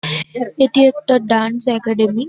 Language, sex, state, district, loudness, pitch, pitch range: Bengali, female, West Bengal, North 24 Parganas, -15 LUFS, 240 Hz, 225-260 Hz